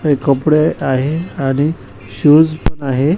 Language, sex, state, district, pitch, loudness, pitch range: Marathi, male, Maharashtra, Washim, 145 Hz, -14 LUFS, 135-155 Hz